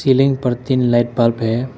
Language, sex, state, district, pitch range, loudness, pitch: Hindi, male, Arunachal Pradesh, Lower Dibang Valley, 120-130 Hz, -16 LUFS, 125 Hz